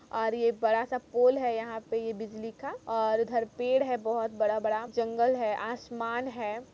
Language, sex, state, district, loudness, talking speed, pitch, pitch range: Hindi, female, Chhattisgarh, Kabirdham, -30 LUFS, 170 wpm, 230 Hz, 225-245 Hz